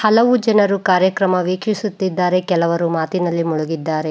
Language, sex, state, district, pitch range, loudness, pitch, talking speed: Kannada, female, Karnataka, Bangalore, 170-200 Hz, -17 LUFS, 185 Hz, 100 wpm